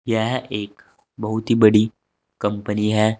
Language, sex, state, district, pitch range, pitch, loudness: Hindi, male, Uttar Pradesh, Saharanpur, 105-110 Hz, 110 Hz, -20 LUFS